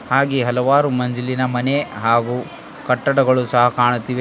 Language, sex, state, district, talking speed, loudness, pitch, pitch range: Kannada, male, Karnataka, Bidar, 115 wpm, -18 LUFS, 125 Hz, 125-135 Hz